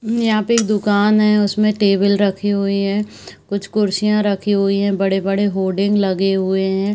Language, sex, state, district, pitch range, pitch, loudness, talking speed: Hindi, female, Bihar, Saharsa, 195-210 Hz, 200 Hz, -17 LUFS, 175 wpm